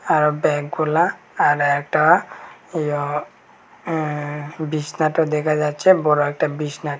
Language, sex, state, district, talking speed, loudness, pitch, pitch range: Bengali, male, Tripura, Unakoti, 110 wpm, -20 LUFS, 150 Hz, 145-155 Hz